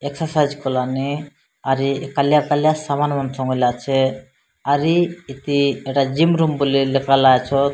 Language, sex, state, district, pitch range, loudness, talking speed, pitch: Odia, male, Odisha, Malkangiri, 135-145 Hz, -18 LUFS, 125 wpm, 140 Hz